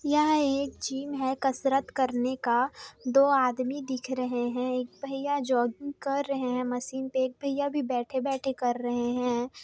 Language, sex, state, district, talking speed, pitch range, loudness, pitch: Hindi, female, Bihar, Kishanganj, 170 wpm, 250-275 Hz, -29 LUFS, 260 Hz